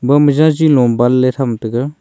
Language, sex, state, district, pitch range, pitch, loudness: Wancho, male, Arunachal Pradesh, Longding, 120-145 Hz, 130 Hz, -12 LUFS